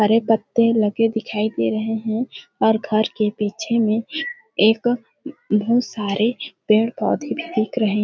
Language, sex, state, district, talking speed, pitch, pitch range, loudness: Hindi, female, Chhattisgarh, Balrampur, 165 wpm, 220 Hz, 215-230 Hz, -20 LUFS